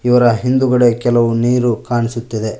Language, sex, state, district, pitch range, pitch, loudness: Kannada, male, Karnataka, Koppal, 115-125 Hz, 120 Hz, -14 LUFS